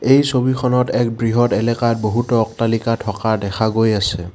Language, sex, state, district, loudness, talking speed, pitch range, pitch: Assamese, male, Assam, Kamrup Metropolitan, -17 LUFS, 140 wpm, 110-120 Hz, 115 Hz